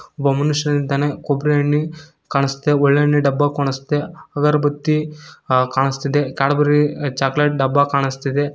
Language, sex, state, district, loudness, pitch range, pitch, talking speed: Kannada, male, Karnataka, Koppal, -18 LUFS, 140-150 Hz, 145 Hz, 110 wpm